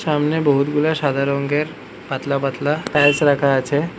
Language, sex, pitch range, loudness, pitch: Bengali, male, 140-150 Hz, -18 LUFS, 145 Hz